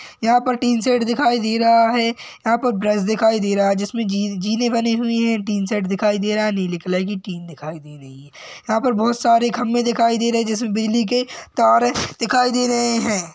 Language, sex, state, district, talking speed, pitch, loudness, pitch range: Hindi, male, Chhattisgarh, Rajnandgaon, 240 wpm, 230 Hz, -18 LUFS, 205-235 Hz